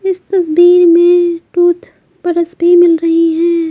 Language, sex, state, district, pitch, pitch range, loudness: Hindi, female, Bihar, Patna, 345 Hz, 335-355 Hz, -10 LUFS